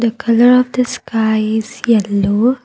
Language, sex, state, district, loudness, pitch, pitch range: English, female, Assam, Kamrup Metropolitan, -14 LUFS, 230 Hz, 220-250 Hz